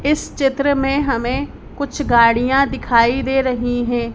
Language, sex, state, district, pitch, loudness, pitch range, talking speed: Hindi, female, Madhya Pradesh, Bhopal, 265 Hz, -17 LUFS, 240-275 Hz, 145 wpm